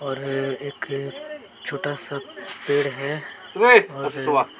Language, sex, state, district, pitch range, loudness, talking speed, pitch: Hindi, male, Jharkhand, Deoghar, 135-145 Hz, -22 LUFS, 90 wpm, 140 Hz